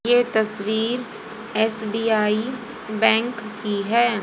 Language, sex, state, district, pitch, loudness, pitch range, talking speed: Hindi, female, Haryana, Jhajjar, 220 Hz, -22 LUFS, 215-235 Hz, 85 wpm